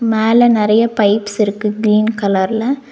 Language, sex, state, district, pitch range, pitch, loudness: Tamil, female, Tamil Nadu, Nilgiris, 210-230 Hz, 220 Hz, -14 LUFS